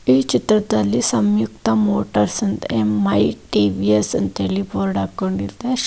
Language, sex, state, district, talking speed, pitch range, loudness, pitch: Kannada, female, Karnataka, Dakshina Kannada, 90 wpm, 100-110 Hz, -19 LUFS, 105 Hz